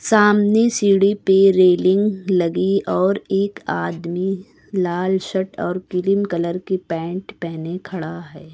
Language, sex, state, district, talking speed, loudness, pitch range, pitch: Hindi, female, Uttar Pradesh, Lucknow, 125 wpm, -19 LUFS, 175-195 Hz, 185 Hz